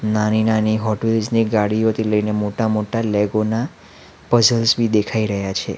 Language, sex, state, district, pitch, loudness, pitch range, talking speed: Gujarati, male, Gujarat, Valsad, 110 Hz, -18 LUFS, 105-115 Hz, 165 wpm